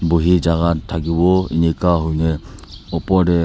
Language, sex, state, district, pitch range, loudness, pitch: Nagamese, male, Nagaland, Dimapur, 80-90 Hz, -17 LUFS, 85 Hz